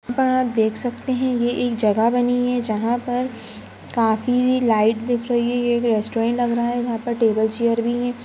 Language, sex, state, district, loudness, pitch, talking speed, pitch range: Hindi, female, Uttar Pradesh, Jyotiba Phule Nagar, -20 LUFS, 240 Hz, 210 wpm, 230-245 Hz